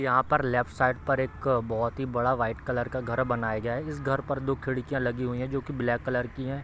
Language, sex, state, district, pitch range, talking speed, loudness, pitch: Hindi, male, Bihar, East Champaran, 120-135 Hz, 270 wpm, -28 LUFS, 130 Hz